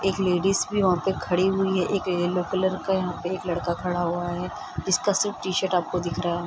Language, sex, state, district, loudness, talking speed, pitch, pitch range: Hindi, female, Bihar, Sitamarhi, -25 LUFS, 240 wpm, 185 Hz, 175-190 Hz